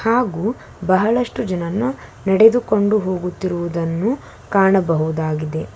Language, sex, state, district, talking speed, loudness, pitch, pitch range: Kannada, female, Karnataka, Bangalore, 65 wpm, -18 LUFS, 195 Hz, 170-225 Hz